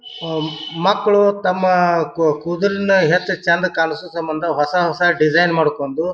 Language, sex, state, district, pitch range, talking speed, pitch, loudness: Kannada, male, Karnataka, Bijapur, 160-185 Hz, 135 wpm, 170 Hz, -17 LUFS